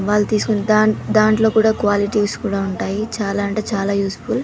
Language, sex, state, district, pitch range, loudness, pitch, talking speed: Telugu, female, Telangana, Nalgonda, 200-215 Hz, -18 LUFS, 210 Hz, 160 wpm